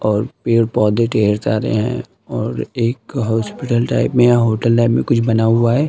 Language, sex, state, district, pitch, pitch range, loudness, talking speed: Hindi, male, Uttar Pradesh, Varanasi, 115 Hz, 110-120 Hz, -16 LUFS, 185 wpm